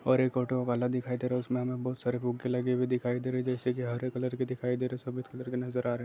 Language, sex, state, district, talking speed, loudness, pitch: Hindi, male, Chhattisgarh, Bastar, 345 wpm, -32 LUFS, 125 Hz